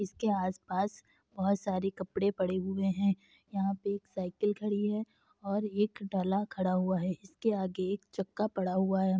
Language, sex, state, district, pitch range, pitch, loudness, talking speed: Hindi, female, Uttar Pradesh, Jalaun, 190-205 Hz, 195 Hz, -33 LUFS, 175 wpm